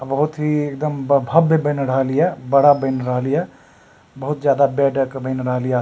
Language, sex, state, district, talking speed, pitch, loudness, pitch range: Maithili, male, Bihar, Supaul, 185 wpm, 140 Hz, -18 LUFS, 130-145 Hz